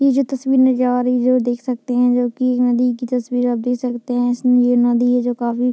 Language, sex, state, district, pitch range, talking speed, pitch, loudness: Hindi, female, Bihar, Darbhanga, 245-250 Hz, 315 wpm, 245 Hz, -17 LUFS